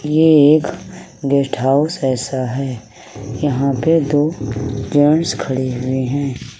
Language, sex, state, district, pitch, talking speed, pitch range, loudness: Hindi, male, Uttar Pradesh, Jalaun, 135 Hz, 120 wpm, 130-150 Hz, -16 LUFS